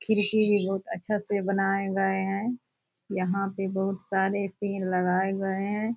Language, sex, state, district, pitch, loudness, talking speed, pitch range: Hindi, female, Bihar, Purnia, 195 Hz, -27 LUFS, 160 wpm, 190-205 Hz